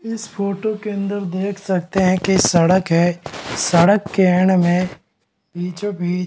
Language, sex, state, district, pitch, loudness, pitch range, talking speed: Hindi, male, Bihar, Kishanganj, 185 Hz, -18 LUFS, 175-200 Hz, 160 wpm